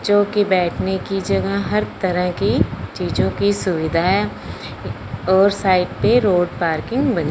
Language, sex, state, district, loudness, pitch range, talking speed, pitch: Hindi, male, Punjab, Fazilka, -19 LUFS, 120-200 Hz, 140 wpm, 180 Hz